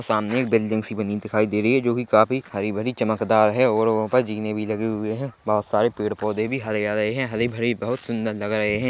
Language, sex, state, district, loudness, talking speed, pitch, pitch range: Hindi, male, Chhattisgarh, Bilaspur, -22 LUFS, 245 wpm, 110 Hz, 105-120 Hz